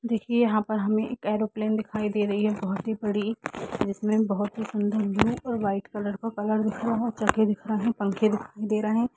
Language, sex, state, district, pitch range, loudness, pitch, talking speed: Hindi, female, Jharkhand, Sahebganj, 205-220 Hz, -27 LUFS, 215 Hz, 195 wpm